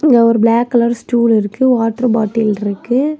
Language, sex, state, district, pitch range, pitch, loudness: Tamil, female, Tamil Nadu, Kanyakumari, 225-245 Hz, 235 Hz, -14 LUFS